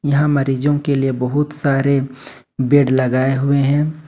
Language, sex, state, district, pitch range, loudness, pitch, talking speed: Hindi, male, Jharkhand, Ranchi, 135-145 Hz, -17 LUFS, 140 Hz, 145 wpm